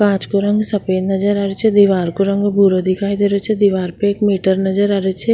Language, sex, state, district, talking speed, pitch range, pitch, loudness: Rajasthani, female, Rajasthan, Nagaur, 260 wpm, 190-205 Hz, 200 Hz, -15 LUFS